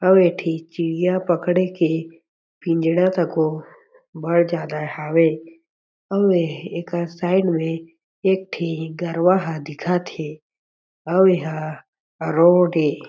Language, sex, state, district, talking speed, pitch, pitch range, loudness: Chhattisgarhi, male, Chhattisgarh, Jashpur, 115 wpm, 165 Hz, 160-180 Hz, -20 LUFS